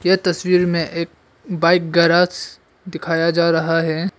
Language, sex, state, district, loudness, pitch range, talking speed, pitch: Hindi, male, Arunachal Pradesh, Longding, -17 LUFS, 165-180 Hz, 130 wpm, 170 Hz